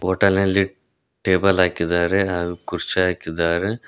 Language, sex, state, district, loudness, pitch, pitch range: Kannada, male, Karnataka, Koppal, -20 LUFS, 95 Hz, 85-100 Hz